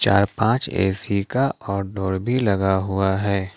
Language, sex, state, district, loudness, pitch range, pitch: Hindi, male, Jharkhand, Ranchi, -21 LUFS, 95-110 Hz, 100 Hz